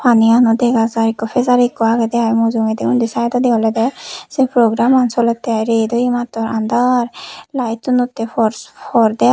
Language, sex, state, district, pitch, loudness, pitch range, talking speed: Chakma, female, Tripura, West Tripura, 235 Hz, -15 LUFS, 225-245 Hz, 155 wpm